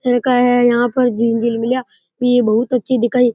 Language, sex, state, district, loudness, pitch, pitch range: Rajasthani, male, Rajasthan, Churu, -15 LUFS, 245 Hz, 240-250 Hz